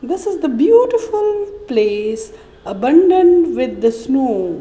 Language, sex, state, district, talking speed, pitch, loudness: English, female, Maharashtra, Mumbai Suburban, 115 wpm, 335 Hz, -15 LUFS